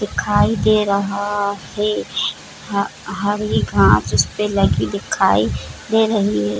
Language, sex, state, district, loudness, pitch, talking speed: Hindi, female, Jharkhand, Jamtara, -18 LUFS, 200 Hz, 125 wpm